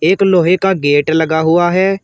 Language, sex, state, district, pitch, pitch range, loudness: Hindi, male, Uttar Pradesh, Shamli, 175 Hz, 160-190 Hz, -12 LUFS